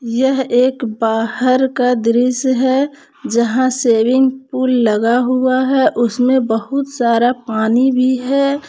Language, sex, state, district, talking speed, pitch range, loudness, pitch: Hindi, female, Jharkhand, Palamu, 125 wpm, 235-265 Hz, -15 LUFS, 255 Hz